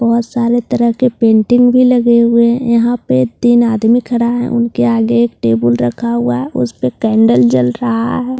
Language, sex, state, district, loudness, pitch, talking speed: Hindi, female, Bihar, Katihar, -12 LUFS, 235 Hz, 200 wpm